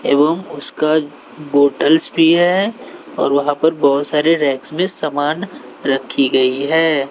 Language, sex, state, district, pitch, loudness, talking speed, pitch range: Hindi, male, Bihar, West Champaran, 150 Hz, -15 LUFS, 135 wpm, 140-165 Hz